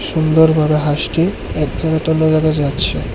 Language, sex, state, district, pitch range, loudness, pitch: Bengali, male, Tripura, West Tripura, 145-160 Hz, -15 LUFS, 155 Hz